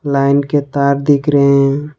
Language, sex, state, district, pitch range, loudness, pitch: Hindi, male, Jharkhand, Ranchi, 140-145 Hz, -13 LUFS, 140 Hz